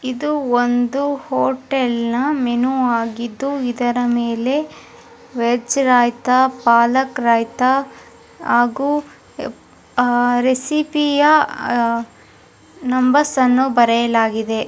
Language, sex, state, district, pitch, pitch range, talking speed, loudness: Kannada, female, Karnataka, Dharwad, 250 Hz, 240-270 Hz, 80 wpm, -17 LUFS